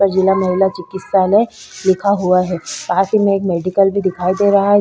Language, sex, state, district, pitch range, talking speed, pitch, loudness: Hindi, female, Uttar Pradesh, Budaun, 185-200 Hz, 200 wpm, 190 Hz, -15 LUFS